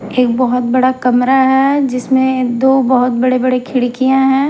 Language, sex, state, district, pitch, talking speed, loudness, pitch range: Hindi, female, Himachal Pradesh, Shimla, 255 Hz, 145 wpm, -13 LUFS, 250-265 Hz